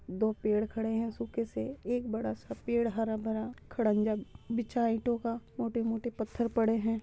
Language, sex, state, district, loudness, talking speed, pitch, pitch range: Hindi, female, Uttar Pradesh, Muzaffarnagar, -33 LUFS, 180 wpm, 225 Hz, 220-235 Hz